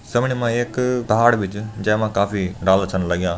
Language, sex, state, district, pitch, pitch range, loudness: Hindi, male, Uttarakhand, Uttarkashi, 105 Hz, 95-120 Hz, -20 LUFS